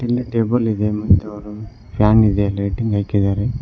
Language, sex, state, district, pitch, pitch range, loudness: Kannada, male, Karnataka, Koppal, 105 Hz, 100-115 Hz, -17 LUFS